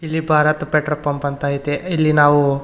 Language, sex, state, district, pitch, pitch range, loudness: Kannada, male, Karnataka, Raichur, 150 Hz, 145-155 Hz, -17 LUFS